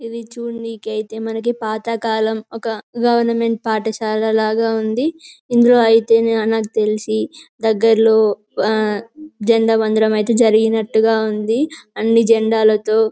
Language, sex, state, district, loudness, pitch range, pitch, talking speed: Telugu, female, Telangana, Karimnagar, -17 LUFS, 220-230 Hz, 225 Hz, 110 wpm